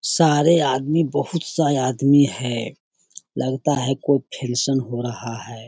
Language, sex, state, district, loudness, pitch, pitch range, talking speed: Hindi, male, Bihar, Lakhisarai, -20 LUFS, 135 Hz, 125-145 Hz, 135 wpm